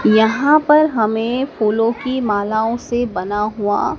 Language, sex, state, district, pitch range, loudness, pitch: Hindi, female, Madhya Pradesh, Dhar, 215-260 Hz, -17 LUFS, 225 Hz